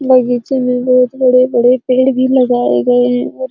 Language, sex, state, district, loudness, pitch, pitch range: Hindi, female, Bihar, Araria, -12 LUFS, 255 Hz, 245-255 Hz